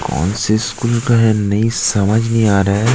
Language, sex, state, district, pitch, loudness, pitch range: Hindi, male, Chhattisgarh, Jashpur, 110 Hz, -15 LUFS, 100-115 Hz